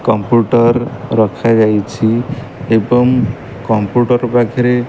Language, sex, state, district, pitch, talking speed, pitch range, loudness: Odia, male, Odisha, Malkangiri, 120 Hz, 75 wpm, 110-125 Hz, -13 LUFS